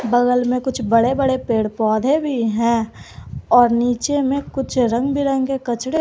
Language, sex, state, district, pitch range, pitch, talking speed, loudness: Hindi, female, Jharkhand, Garhwa, 235-270 Hz, 245 Hz, 160 wpm, -18 LUFS